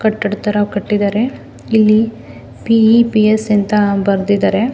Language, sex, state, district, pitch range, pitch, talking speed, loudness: Kannada, female, Karnataka, Mysore, 205-220 Hz, 215 Hz, 100 wpm, -14 LUFS